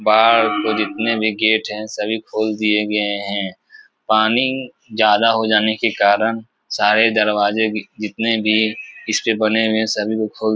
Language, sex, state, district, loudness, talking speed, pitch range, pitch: Hindi, male, Uttar Pradesh, Etah, -17 LUFS, 170 wpm, 105-110 Hz, 110 Hz